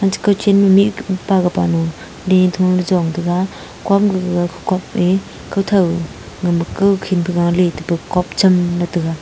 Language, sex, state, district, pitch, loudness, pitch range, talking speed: Wancho, female, Arunachal Pradesh, Longding, 180 Hz, -16 LUFS, 175-195 Hz, 155 wpm